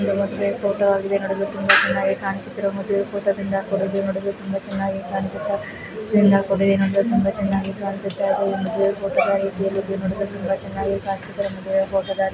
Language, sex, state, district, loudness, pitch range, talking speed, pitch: Kannada, female, Karnataka, Belgaum, -21 LUFS, 195-200 Hz, 145 wpm, 195 Hz